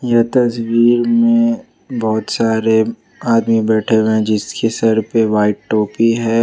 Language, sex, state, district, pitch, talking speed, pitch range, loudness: Hindi, male, Jharkhand, Ranchi, 115 Hz, 140 wpm, 110-115 Hz, -15 LUFS